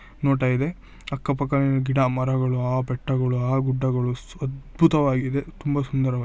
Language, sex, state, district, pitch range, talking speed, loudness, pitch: Kannada, male, Karnataka, Shimoga, 130-140 Hz, 135 wpm, -24 LUFS, 135 Hz